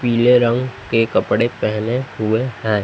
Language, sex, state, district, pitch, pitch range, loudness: Hindi, male, Chhattisgarh, Raipur, 120 Hz, 110-125 Hz, -18 LUFS